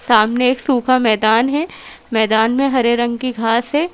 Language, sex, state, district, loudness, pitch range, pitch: Hindi, female, Madhya Pradesh, Bhopal, -15 LUFS, 225-260 Hz, 245 Hz